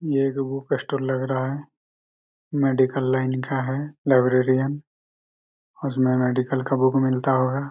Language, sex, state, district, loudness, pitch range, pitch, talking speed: Hindi, male, Chhattisgarh, Raigarh, -23 LUFS, 130-135 Hz, 135 Hz, 140 wpm